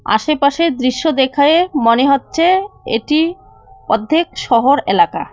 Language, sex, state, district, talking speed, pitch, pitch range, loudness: Bengali, female, West Bengal, Cooch Behar, 100 wpm, 285 Hz, 235-330 Hz, -14 LUFS